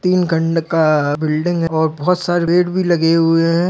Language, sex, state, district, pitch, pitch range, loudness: Hindi, male, Maharashtra, Nagpur, 165 Hz, 160-175 Hz, -16 LUFS